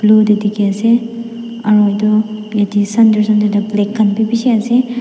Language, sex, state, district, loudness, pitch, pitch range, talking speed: Nagamese, female, Nagaland, Dimapur, -13 LUFS, 215 Hz, 210-230 Hz, 165 wpm